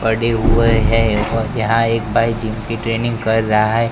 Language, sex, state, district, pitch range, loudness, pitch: Hindi, male, Gujarat, Gandhinagar, 110-115 Hz, -16 LUFS, 115 Hz